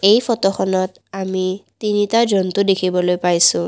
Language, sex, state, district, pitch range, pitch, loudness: Assamese, female, Assam, Kamrup Metropolitan, 185-205 Hz, 190 Hz, -18 LUFS